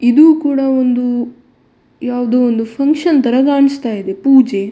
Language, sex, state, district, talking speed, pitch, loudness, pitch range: Kannada, female, Karnataka, Dakshina Kannada, 125 wpm, 250 Hz, -13 LUFS, 240-275 Hz